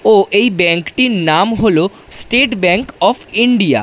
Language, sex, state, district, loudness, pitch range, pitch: Bengali, male, West Bengal, Dakshin Dinajpur, -13 LUFS, 180-245 Hz, 220 Hz